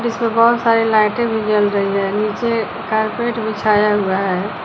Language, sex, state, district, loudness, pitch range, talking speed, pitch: Hindi, female, Uttar Pradesh, Lucknow, -16 LUFS, 205-230 Hz, 165 wpm, 220 Hz